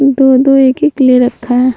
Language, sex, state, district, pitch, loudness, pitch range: Hindi, female, Bihar, Vaishali, 260 Hz, -9 LUFS, 250-275 Hz